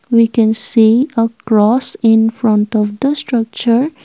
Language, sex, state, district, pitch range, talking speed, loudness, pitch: English, female, Assam, Kamrup Metropolitan, 220-245 Hz, 150 wpm, -13 LUFS, 230 Hz